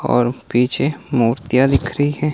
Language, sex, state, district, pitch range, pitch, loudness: Hindi, male, Himachal Pradesh, Shimla, 120-145 Hz, 130 Hz, -18 LUFS